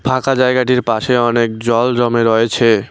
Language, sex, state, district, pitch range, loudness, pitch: Bengali, male, West Bengal, Cooch Behar, 115-125 Hz, -14 LUFS, 120 Hz